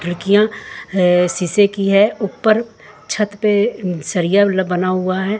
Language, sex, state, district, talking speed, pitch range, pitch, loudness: Hindi, female, Jharkhand, Ranchi, 120 wpm, 180-210 Hz, 195 Hz, -16 LUFS